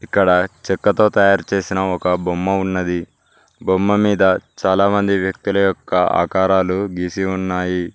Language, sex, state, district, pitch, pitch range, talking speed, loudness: Telugu, male, Telangana, Mahabubabad, 95 Hz, 90-100 Hz, 115 wpm, -17 LUFS